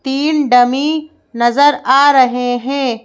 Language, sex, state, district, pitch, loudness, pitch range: Hindi, female, Madhya Pradesh, Bhopal, 270 Hz, -13 LUFS, 245-290 Hz